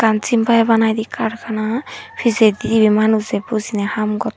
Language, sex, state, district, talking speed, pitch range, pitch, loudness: Chakma, female, Tripura, Dhalai, 165 wpm, 215-230 Hz, 220 Hz, -17 LUFS